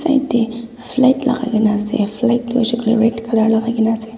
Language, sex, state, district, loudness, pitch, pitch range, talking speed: Nagamese, female, Nagaland, Dimapur, -16 LUFS, 235 Hz, 225-245 Hz, 200 wpm